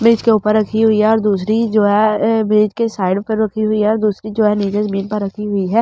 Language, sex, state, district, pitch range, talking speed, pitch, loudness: Hindi, female, Delhi, New Delhi, 210-220 Hz, 280 wpm, 215 Hz, -15 LUFS